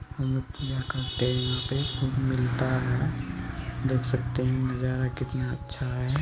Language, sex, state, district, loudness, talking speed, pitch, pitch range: Hindi, male, Bihar, Araria, -29 LUFS, 65 wpm, 130 Hz, 125-130 Hz